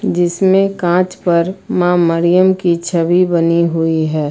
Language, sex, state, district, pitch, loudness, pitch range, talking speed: Hindi, female, Uttar Pradesh, Lucknow, 175 Hz, -14 LUFS, 170-185 Hz, 140 wpm